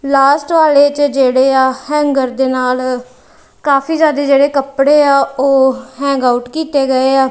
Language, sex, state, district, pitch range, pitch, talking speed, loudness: Punjabi, female, Punjab, Kapurthala, 260-285 Hz, 275 Hz, 140 wpm, -12 LUFS